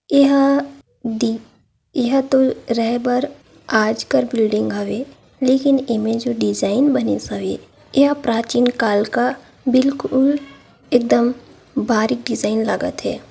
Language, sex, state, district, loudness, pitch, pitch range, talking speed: Hindi, female, Chhattisgarh, Sarguja, -18 LUFS, 245 Hz, 230-270 Hz, 105 wpm